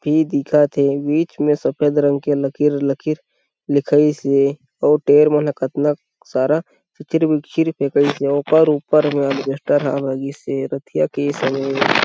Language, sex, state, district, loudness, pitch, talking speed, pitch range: Chhattisgarhi, male, Chhattisgarh, Sarguja, -18 LUFS, 145 Hz, 125 wpm, 140-150 Hz